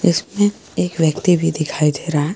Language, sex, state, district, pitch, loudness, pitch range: Hindi, male, Jharkhand, Garhwa, 165 Hz, -18 LUFS, 150-180 Hz